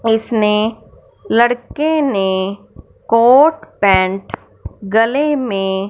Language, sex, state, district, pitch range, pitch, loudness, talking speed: Hindi, male, Punjab, Fazilka, 195-250 Hz, 225 Hz, -15 LUFS, 80 wpm